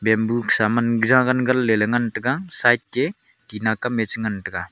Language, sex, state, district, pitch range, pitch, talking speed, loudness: Wancho, male, Arunachal Pradesh, Longding, 110-125 Hz, 115 Hz, 180 wpm, -20 LUFS